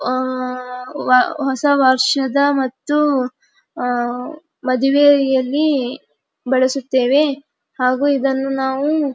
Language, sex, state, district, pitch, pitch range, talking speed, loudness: Kannada, female, Karnataka, Dharwad, 270 Hz, 255-290 Hz, 80 wpm, -17 LUFS